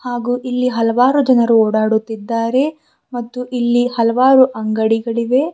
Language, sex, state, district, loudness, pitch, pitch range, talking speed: Kannada, female, Karnataka, Bidar, -15 LUFS, 240 Hz, 230-250 Hz, 95 wpm